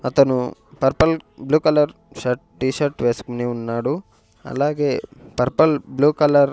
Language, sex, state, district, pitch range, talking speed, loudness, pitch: Telugu, male, Andhra Pradesh, Sri Satya Sai, 125-150 Hz, 130 wpm, -20 LUFS, 135 Hz